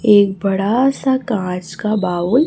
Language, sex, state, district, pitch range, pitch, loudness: Hindi, female, Chhattisgarh, Raipur, 190-250 Hz, 205 Hz, -17 LUFS